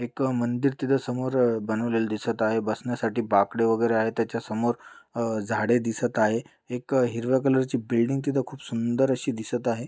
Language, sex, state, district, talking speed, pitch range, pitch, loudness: Marathi, male, Maharashtra, Pune, 160 wpm, 115-130 Hz, 120 Hz, -26 LUFS